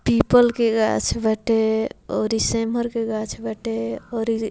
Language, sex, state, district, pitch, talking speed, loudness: Bhojpuri, female, Bihar, Muzaffarpur, 220 Hz, 170 wpm, -21 LUFS